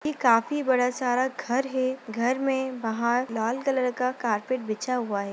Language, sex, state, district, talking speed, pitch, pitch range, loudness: Hindi, female, Bihar, Jamui, 180 wpm, 250 Hz, 230-260 Hz, -26 LUFS